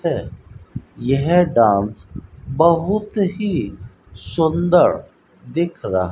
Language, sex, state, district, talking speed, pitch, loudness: Hindi, male, Rajasthan, Bikaner, 90 wpm, 160 Hz, -18 LUFS